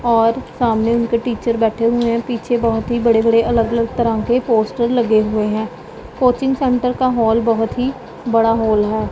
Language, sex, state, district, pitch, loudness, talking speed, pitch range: Hindi, female, Punjab, Pathankot, 230 Hz, -16 LUFS, 190 wpm, 225-240 Hz